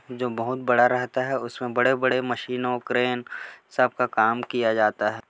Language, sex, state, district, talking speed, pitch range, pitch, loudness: Hindi, male, Chhattisgarh, Korba, 180 wpm, 120-125 Hz, 125 Hz, -24 LUFS